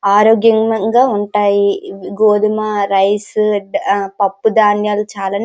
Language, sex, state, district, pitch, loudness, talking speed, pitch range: Telugu, female, Andhra Pradesh, Srikakulam, 210 Hz, -14 LUFS, 90 wpm, 200-215 Hz